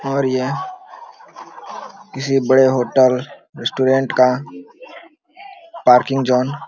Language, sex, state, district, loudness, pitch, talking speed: Hindi, male, Chhattisgarh, Korba, -16 LUFS, 135 Hz, 90 wpm